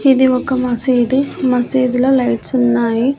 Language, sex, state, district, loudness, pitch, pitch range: Telugu, female, Andhra Pradesh, Annamaya, -15 LUFS, 255 Hz, 245-265 Hz